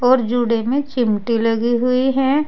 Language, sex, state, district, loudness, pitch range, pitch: Hindi, female, Uttar Pradesh, Saharanpur, -18 LUFS, 230-265 Hz, 245 Hz